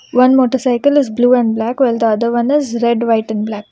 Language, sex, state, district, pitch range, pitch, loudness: English, female, Karnataka, Bangalore, 225-255 Hz, 240 Hz, -14 LUFS